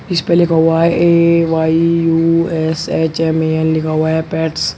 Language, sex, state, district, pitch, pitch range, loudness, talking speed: Hindi, male, Uttar Pradesh, Shamli, 165 Hz, 160-170 Hz, -13 LUFS, 125 wpm